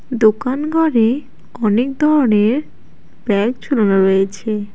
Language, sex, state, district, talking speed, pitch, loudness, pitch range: Bengali, female, West Bengal, Alipurduar, 75 wpm, 230 Hz, -16 LUFS, 210-270 Hz